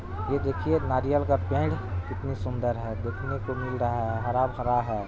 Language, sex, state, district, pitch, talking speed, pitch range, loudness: Hindi, male, Bihar, Supaul, 115 Hz, 175 wpm, 95-130 Hz, -28 LUFS